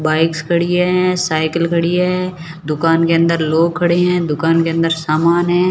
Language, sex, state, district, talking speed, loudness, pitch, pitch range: Hindi, female, Rajasthan, Barmer, 180 wpm, -15 LUFS, 170 Hz, 160-175 Hz